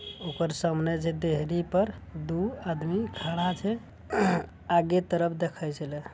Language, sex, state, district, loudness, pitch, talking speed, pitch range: Angika, male, Bihar, Araria, -29 LUFS, 170 Hz, 135 wpm, 160-180 Hz